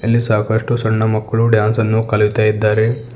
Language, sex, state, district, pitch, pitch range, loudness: Kannada, male, Karnataka, Bidar, 110 Hz, 110-115 Hz, -15 LUFS